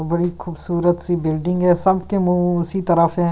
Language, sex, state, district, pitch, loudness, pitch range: Hindi, female, Delhi, New Delhi, 175 Hz, -16 LUFS, 170-180 Hz